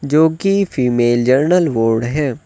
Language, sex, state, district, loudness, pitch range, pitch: Hindi, male, Uttar Pradesh, Saharanpur, -15 LUFS, 120-160 Hz, 140 Hz